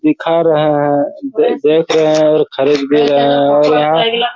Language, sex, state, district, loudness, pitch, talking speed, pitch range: Hindi, male, Chhattisgarh, Raigarh, -12 LUFS, 155 Hz, 195 wpm, 145-225 Hz